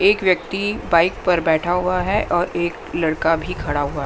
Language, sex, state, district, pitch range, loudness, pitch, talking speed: Hindi, female, Bihar, West Champaran, 160-185 Hz, -19 LUFS, 175 Hz, 190 wpm